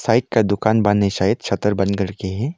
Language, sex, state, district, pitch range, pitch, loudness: Hindi, male, Arunachal Pradesh, Longding, 100-110 Hz, 100 Hz, -19 LUFS